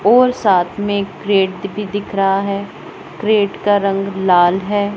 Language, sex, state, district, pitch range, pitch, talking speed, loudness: Hindi, male, Punjab, Pathankot, 195-205 Hz, 200 Hz, 170 wpm, -16 LUFS